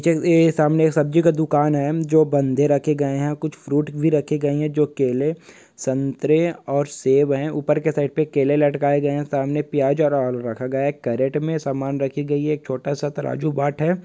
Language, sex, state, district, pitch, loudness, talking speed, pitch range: Hindi, male, Uttar Pradesh, Etah, 145 Hz, -20 LUFS, 220 wpm, 140-155 Hz